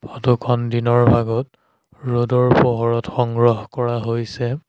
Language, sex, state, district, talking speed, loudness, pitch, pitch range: Assamese, male, Assam, Sonitpur, 115 wpm, -18 LUFS, 120 Hz, 115-125 Hz